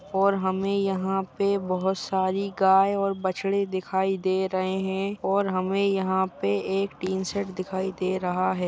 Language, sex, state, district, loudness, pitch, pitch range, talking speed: Hindi, female, Uttar Pradesh, Etah, -26 LUFS, 190 Hz, 185-195 Hz, 165 wpm